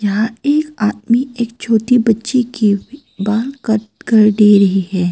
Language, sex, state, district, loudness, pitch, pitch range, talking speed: Hindi, female, Arunachal Pradesh, Papum Pare, -15 LUFS, 220 Hz, 210-245 Hz, 150 wpm